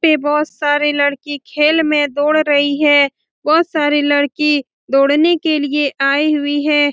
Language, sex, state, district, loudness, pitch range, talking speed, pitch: Hindi, female, Bihar, Saran, -14 LUFS, 285-300 Hz, 155 wpm, 295 Hz